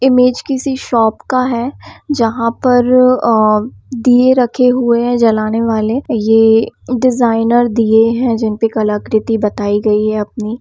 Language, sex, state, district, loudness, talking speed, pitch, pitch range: Hindi, female, Bihar, Samastipur, -13 LUFS, 140 wpm, 230 Hz, 220-250 Hz